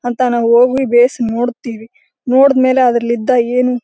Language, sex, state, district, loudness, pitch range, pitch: Kannada, female, Karnataka, Bellary, -12 LUFS, 235-255 Hz, 245 Hz